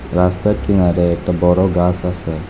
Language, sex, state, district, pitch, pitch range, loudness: Bengali, male, Tripura, West Tripura, 90 Hz, 85-90 Hz, -16 LUFS